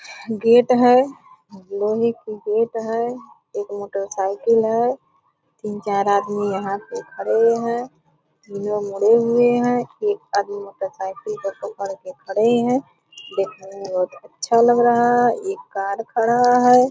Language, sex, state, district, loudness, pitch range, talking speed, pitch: Hindi, female, Bihar, Purnia, -20 LUFS, 200-245 Hz, 140 wpm, 230 Hz